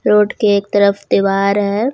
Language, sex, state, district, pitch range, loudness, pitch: Hindi, female, Jharkhand, Ranchi, 200-210 Hz, -14 LUFS, 200 Hz